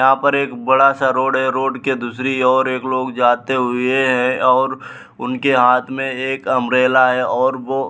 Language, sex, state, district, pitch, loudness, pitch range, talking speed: Hindi, male, Bihar, Vaishali, 130 Hz, -16 LUFS, 125-135 Hz, 180 wpm